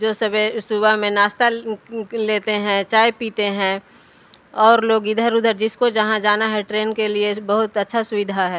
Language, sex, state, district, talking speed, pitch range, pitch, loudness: Hindi, female, Bihar, Patna, 170 wpm, 210-225 Hz, 215 Hz, -18 LUFS